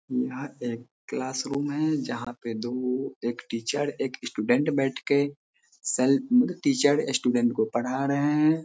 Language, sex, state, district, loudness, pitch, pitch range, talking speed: Hindi, male, Bihar, Darbhanga, -27 LUFS, 135 Hz, 120-145 Hz, 155 wpm